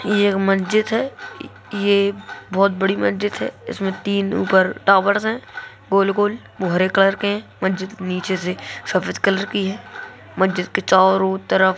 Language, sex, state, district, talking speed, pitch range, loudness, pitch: Hindi, female, Bihar, Purnia, 155 wpm, 190-205 Hz, -19 LUFS, 195 Hz